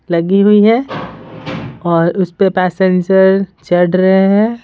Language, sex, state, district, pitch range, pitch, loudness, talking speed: Hindi, female, Bihar, Patna, 175-195 Hz, 190 Hz, -12 LUFS, 130 wpm